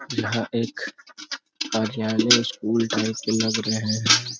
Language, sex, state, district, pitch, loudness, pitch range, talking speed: Hindi, male, Jharkhand, Sahebganj, 110 Hz, -22 LUFS, 110-115 Hz, 135 wpm